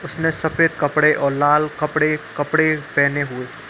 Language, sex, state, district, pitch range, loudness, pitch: Hindi, male, Uttar Pradesh, Muzaffarnagar, 145-160 Hz, -18 LUFS, 150 Hz